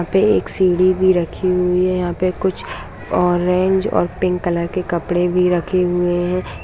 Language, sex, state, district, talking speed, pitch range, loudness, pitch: Hindi, female, Bihar, Madhepura, 190 wpm, 175-185 Hz, -17 LUFS, 180 Hz